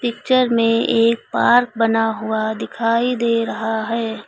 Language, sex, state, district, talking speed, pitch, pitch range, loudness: Hindi, female, Uttar Pradesh, Lucknow, 140 wpm, 230 Hz, 225-235 Hz, -18 LUFS